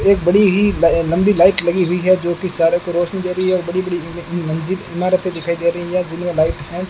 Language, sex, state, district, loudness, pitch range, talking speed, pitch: Hindi, male, Rajasthan, Bikaner, -17 LUFS, 170-185 Hz, 245 wpm, 175 Hz